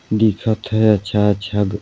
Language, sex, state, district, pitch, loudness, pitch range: Chhattisgarhi, male, Chhattisgarh, Balrampur, 105 Hz, -17 LUFS, 105-110 Hz